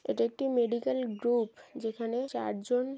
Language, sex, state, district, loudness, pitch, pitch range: Bengali, female, West Bengal, Jhargram, -32 LUFS, 240 Hz, 230-260 Hz